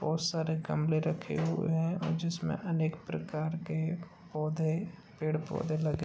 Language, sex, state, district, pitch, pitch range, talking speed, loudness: Hindi, male, Uttar Pradesh, Gorakhpur, 160 Hz, 155-170 Hz, 160 wpm, -33 LUFS